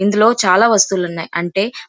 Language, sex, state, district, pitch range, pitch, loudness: Telugu, female, Andhra Pradesh, Chittoor, 180-220 Hz, 195 Hz, -15 LUFS